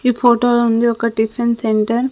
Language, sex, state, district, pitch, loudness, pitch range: Telugu, female, Andhra Pradesh, Sri Satya Sai, 235 Hz, -16 LUFS, 230-240 Hz